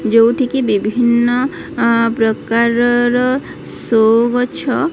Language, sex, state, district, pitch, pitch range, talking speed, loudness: Odia, female, Odisha, Sambalpur, 235 Hz, 230-245 Hz, 85 wpm, -14 LUFS